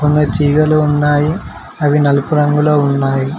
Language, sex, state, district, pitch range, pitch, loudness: Telugu, male, Telangana, Mahabubabad, 145-150 Hz, 150 Hz, -13 LUFS